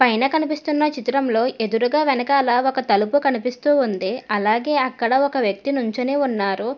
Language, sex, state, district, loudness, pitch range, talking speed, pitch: Telugu, female, Telangana, Hyderabad, -20 LUFS, 230-280 Hz, 135 wpm, 255 Hz